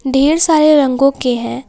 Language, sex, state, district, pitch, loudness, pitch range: Hindi, female, Jharkhand, Palamu, 270 Hz, -12 LUFS, 255-305 Hz